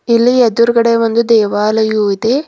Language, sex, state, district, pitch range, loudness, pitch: Kannada, female, Karnataka, Bidar, 220-235 Hz, -12 LUFS, 230 Hz